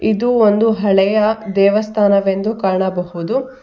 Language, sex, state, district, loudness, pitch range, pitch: Kannada, female, Karnataka, Bangalore, -15 LUFS, 195-220 Hz, 210 Hz